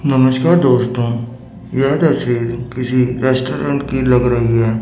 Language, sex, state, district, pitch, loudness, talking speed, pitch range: Hindi, male, Chandigarh, Chandigarh, 125 Hz, -15 LUFS, 125 wpm, 120-130 Hz